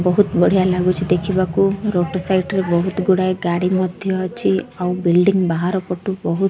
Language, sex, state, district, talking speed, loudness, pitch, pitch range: Odia, female, Odisha, Sambalpur, 165 wpm, -18 LUFS, 185 Hz, 180-190 Hz